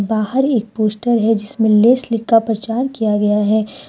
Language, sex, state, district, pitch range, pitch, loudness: Hindi, female, Jharkhand, Deoghar, 215-235 Hz, 225 Hz, -16 LUFS